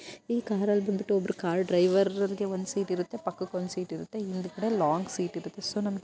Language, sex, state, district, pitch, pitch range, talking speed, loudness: Kannada, female, Karnataka, Dharwad, 195 Hz, 180-205 Hz, 230 wpm, -30 LUFS